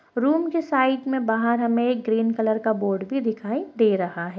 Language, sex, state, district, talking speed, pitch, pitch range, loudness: Hindi, female, Uttar Pradesh, Hamirpur, 220 wpm, 230 Hz, 220-265 Hz, -23 LUFS